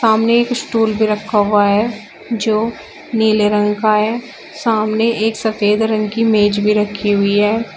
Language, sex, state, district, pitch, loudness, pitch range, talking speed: Hindi, female, Uttar Pradesh, Shamli, 220 Hz, -15 LUFS, 210-225 Hz, 170 wpm